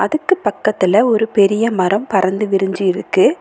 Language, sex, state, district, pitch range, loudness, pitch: Tamil, female, Tamil Nadu, Nilgiris, 190-225 Hz, -15 LUFS, 200 Hz